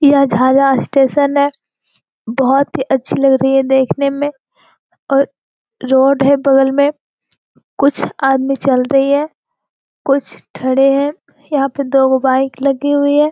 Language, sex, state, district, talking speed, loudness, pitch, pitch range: Hindi, female, Bihar, Jamui, 145 wpm, -14 LUFS, 275 Hz, 270-285 Hz